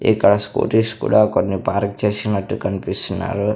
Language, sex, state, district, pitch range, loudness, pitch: Telugu, male, Andhra Pradesh, Sri Satya Sai, 100-105 Hz, -18 LUFS, 100 Hz